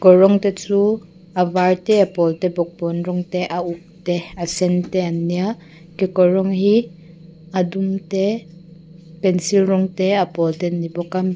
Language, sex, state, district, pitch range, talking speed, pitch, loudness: Mizo, female, Mizoram, Aizawl, 170-190 Hz, 195 wpm, 180 Hz, -19 LUFS